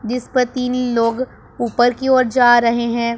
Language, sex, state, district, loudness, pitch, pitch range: Hindi, female, Punjab, Pathankot, -16 LUFS, 245 Hz, 235-250 Hz